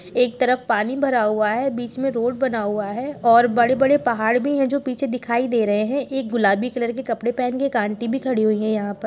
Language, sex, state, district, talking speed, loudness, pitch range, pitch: Hindi, female, Uttar Pradesh, Jalaun, 260 wpm, -20 LUFS, 220-260 Hz, 240 Hz